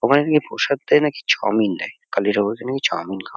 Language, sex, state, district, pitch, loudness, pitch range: Bengali, male, West Bengal, Kolkata, 125 Hz, -20 LUFS, 100-145 Hz